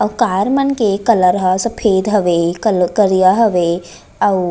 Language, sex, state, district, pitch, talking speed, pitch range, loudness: Chhattisgarhi, female, Chhattisgarh, Raigarh, 195 Hz, 185 wpm, 180-220 Hz, -14 LUFS